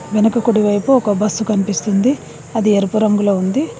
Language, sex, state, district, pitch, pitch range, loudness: Telugu, female, Telangana, Mahabubabad, 215 Hz, 205-225 Hz, -16 LUFS